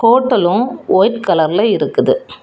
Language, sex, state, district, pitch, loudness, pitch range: Tamil, female, Tamil Nadu, Kanyakumari, 230 Hz, -14 LUFS, 180-245 Hz